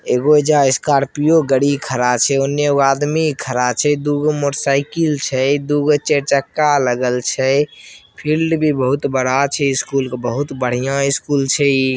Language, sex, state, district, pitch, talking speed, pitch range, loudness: Maithili, male, Bihar, Begusarai, 140 Hz, 160 wpm, 135-145 Hz, -16 LUFS